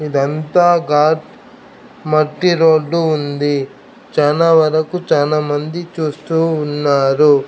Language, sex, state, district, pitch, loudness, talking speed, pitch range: Telugu, male, Andhra Pradesh, Krishna, 155 Hz, -15 LUFS, 80 wpm, 145-165 Hz